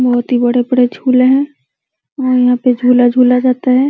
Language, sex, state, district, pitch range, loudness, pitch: Hindi, female, Uttar Pradesh, Deoria, 245-255 Hz, -12 LUFS, 250 Hz